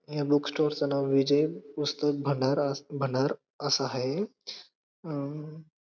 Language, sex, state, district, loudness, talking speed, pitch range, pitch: Marathi, male, Maharashtra, Dhule, -29 LUFS, 125 wpm, 140-150 Hz, 145 Hz